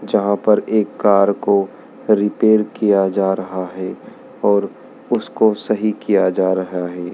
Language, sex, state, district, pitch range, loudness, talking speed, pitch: Hindi, male, Madhya Pradesh, Dhar, 95-105 Hz, -17 LUFS, 145 wpm, 100 Hz